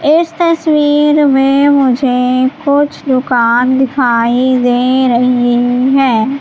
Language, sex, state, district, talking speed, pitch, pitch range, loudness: Hindi, female, Madhya Pradesh, Katni, 95 wpm, 260 Hz, 245-285 Hz, -11 LUFS